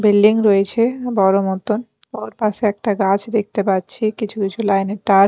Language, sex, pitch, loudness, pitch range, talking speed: Bengali, female, 210 Hz, -18 LUFS, 195-220 Hz, 170 wpm